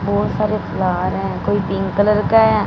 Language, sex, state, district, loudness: Hindi, female, Punjab, Fazilka, -18 LUFS